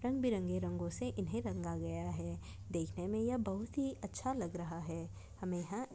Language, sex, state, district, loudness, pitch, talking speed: Hindi, female, Maharashtra, Pune, -40 LUFS, 165 Hz, 180 wpm